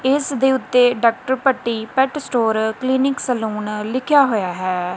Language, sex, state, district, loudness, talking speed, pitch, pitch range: Punjabi, female, Punjab, Kapurthala, -18 LUFS, 145 wpm, 250 Hz, 220-265 Hz